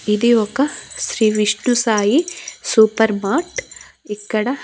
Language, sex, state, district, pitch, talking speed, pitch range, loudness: Telugu, female, Andhra Pradesh, Annamaya, 225 Hz, 105 wpm, 210-270 Hz, -17 LUFS